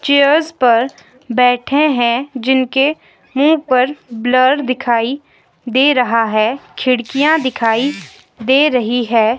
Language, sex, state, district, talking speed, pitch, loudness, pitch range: Hindi, female, Himachal Pradesh, Shimla, 110 wpm, 255 Hz, -14 LUFS, 240-280 Hz